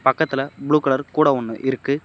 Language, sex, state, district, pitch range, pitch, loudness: Tamil, male, Tamil Nadu, Namakkal, 130-150 Hz, 140 Hz, -20 LUFS